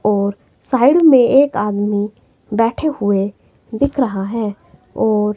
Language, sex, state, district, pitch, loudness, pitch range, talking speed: Hindi, female, Himachal Pradesh, Shimla, 215 Hz, -16 LUFS, 205-260 Hz, 125 wpm